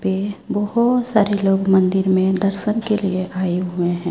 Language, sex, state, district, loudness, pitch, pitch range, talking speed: Hindi, male, Chhattisgarh, Raipur, -19 LUFS, 195 Hz, 185-205 Hz, 175 wpm